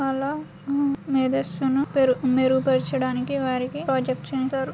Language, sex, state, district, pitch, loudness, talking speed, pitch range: Telugu, female, Telangana, Karimnagar, 265 Hz, -24 LUFS, 100 wpm, 255-275 Hz